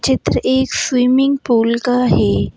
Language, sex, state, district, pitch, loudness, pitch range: Hindi, female, Madhya Pradesh, Bhopal, 255 Hz, -15 LUFS, 245-265 Hz